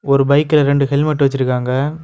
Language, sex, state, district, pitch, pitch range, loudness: Tamil, male, Tamil Nadu, Kanyakumari, 140 Hz, 135-150 Hz, -15 LUFS